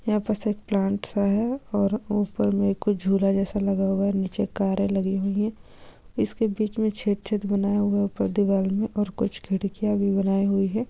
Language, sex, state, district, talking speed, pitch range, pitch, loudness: Hindi, female, Goa, North and South Goa, 205 wpm, 195-210 Hz, 200 Hz, -25 LUFS